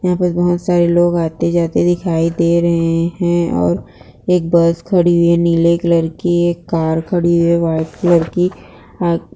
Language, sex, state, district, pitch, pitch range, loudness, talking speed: Hindi, female, Maharashtra, Nagpur, 170 Hz, 165-175 Hz, -15 LUFS, 180 wpm